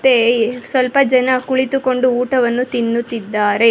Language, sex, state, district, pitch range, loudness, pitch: Kannada, female, Karnataka, Bangalore, 235-260 Hz, -16 LUFS, 250 Hz